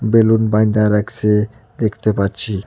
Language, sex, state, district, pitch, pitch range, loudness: Bengali, male, West Bengal, Cooch Behar, 110 Hz, 105-110 Hz, -16 LUFS